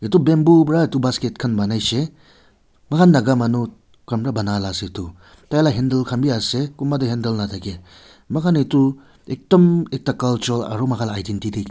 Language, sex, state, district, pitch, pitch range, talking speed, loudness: Nagamese, male, Nagaland, Kohima, 125 Hz, 110-140 Hz, 170 wpm, -19 LUFS